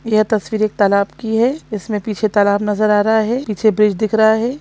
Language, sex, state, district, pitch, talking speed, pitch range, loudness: Hindi, female, Chhattisgarh, Sukma, 215 Hz, 235 wpm, 210-220 Hz, -16 LUFS